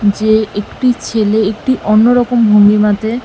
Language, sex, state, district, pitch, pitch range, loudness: Bengali, female, West Bengal, Malda, 215 Hz, 210-240 Hz, -11 LUFS